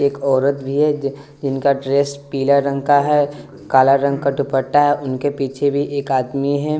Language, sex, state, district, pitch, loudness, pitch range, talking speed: Hindi, male, Bihar, West Champaran, 140 Hz, -18 LUFS, 135-145 Hz, 195 wpm